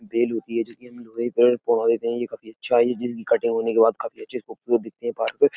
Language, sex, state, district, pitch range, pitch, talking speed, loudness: Hindi, male, Uttar Pradesh, Etah, 115-125 Hz, 120 Hz, 250 wpm, -23 LUFS